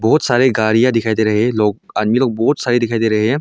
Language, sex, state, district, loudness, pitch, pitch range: Hindi, male, Arunachal Pradesh, Longding, -15 LUFS, 115 Hz, 110-120 Hz